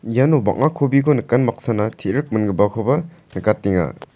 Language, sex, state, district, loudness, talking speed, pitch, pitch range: Garo, male, Meghalaya, South Garo Hills, -19 LUFS, 115 wpm, 115 Hz, 105-140 Hz